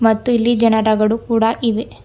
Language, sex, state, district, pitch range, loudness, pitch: Kannada, female, Karnataka, Bidar, 220-230 Hz, -16 LUFS, 225 Hz